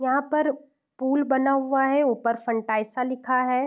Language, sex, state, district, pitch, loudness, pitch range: Hindi, female, Uttar Pradesh, Varanasi, 265 Hz, -24 LUFS, 250-280 Hz